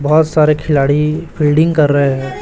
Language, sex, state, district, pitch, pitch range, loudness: Hindi, male, Chhattisgarh, Raipur, 150 Hz, 145-155 Hz, -13 LUFS